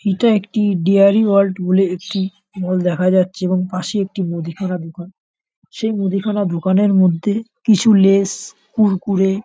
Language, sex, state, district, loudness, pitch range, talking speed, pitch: Bengali, male, West Bengal, North 24 Parganas, -16 LUFS, 185-210 Hz, 140 wpm, 195 Hz